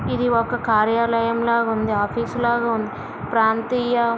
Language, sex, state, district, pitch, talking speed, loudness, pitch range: Telugu, female, Andhra Pradesh, Visakhapatnam, 230 Hz, 130 wpm, -20 LUFS, 225-235 Hz